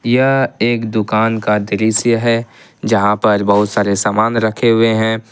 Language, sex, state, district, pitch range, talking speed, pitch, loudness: Hindi, male, Jharkhand, Ranchi, 105-115 Hz, 160 wpm, 110 Hz, -14 LUFS